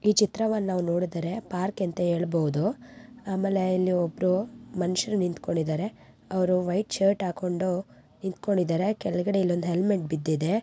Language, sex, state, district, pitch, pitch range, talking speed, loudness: Kannada, female, Karnataka, Bijapur, 185 Hz, 175-205 Hz, 140 wpm, -27 LUFS